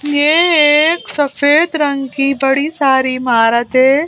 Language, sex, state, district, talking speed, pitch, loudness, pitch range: Hindi, female, Madhya Pradesh, Bhopal, 135 wpm, 285 Hz, -12 LUFS, 265-300 Hz